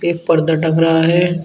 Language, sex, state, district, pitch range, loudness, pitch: Hindi, male, Uttar Pradesh, Shamli, 160-170 Hz, -14 LUFS, 165 Hz